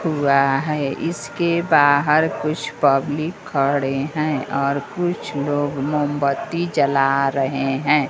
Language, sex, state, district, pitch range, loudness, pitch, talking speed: Hindi, female, Bihar, West Champaran, 140-155 Hz, -20 LUFS, 145 Hz, 110 wpm